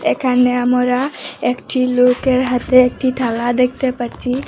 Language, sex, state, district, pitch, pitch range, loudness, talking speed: Bengali, female, Assam, Hailakandi, 250 Hz, 250-255 Hz, -16 LUFS, 120 wpm